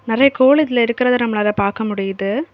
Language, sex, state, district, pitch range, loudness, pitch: Tamil, female, Tamil Nadu, Kanyakumari, 210-260 Hz, -16 LUFS, 235 Hz